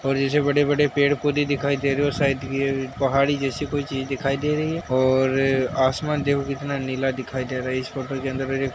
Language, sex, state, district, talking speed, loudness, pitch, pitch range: Hindi, male, Uttar Pradesh, Hamirpur, 225 wpm, -23 LUFS, 135 Hz, 135-145 Hz